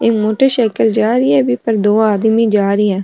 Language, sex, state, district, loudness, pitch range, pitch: Marwari, female, Rajasthan, Nagaur, -13 LUFS, 205-225 Hz, 215 Hz